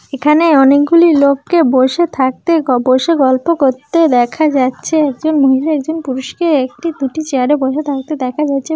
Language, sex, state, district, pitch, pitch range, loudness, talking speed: Bengali, female, West Bengal, Jalpaiguri, 290 Hz, 265-315 Hz, -13 LUFS, 150 wpm